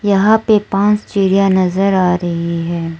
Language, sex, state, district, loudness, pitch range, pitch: Hindi, female, Arunachal Pradesh, Lower Dibang Valley, -14 LUFS, 175-205 Hz, 195 Hz